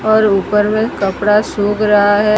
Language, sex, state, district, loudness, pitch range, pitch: Hindi, female, Odisha, Sambalpur, -13 LUFS, 205-215 Hz, 210 Hz